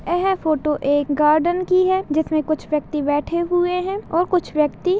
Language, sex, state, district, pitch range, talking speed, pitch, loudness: Hindi, female, Chhattisgarh, Balrampur, 300-360 Hz, 180 wpm, 320 Hz, -20 LUFS